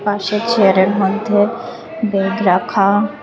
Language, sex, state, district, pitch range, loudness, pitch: Bengali, female, Tripura, West Tripura, 195-220 Hz, -15 LUFS, 205 Hz